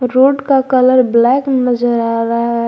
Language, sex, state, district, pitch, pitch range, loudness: Hindi, female, Jharkhand, Garhwa, 250 Hz, 235-260 Hz, -12 LUFS